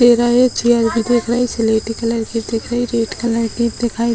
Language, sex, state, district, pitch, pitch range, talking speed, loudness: Hindi, female, Bihar, Muzaffarpur, 235 Hz, 230-240 Hz, 215 wpm, -17 LUFS